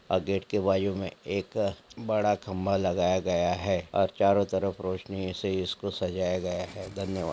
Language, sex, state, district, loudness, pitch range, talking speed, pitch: Angika, male, Bihar, Samastipur, -29 LUFS, 95-100 Hz, 170 wpm, 95 Hz